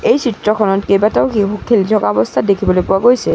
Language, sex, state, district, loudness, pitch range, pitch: Assamese, female, Assam, Sonitpur, -14 LUFS, 195-225 Hz, 210 Hz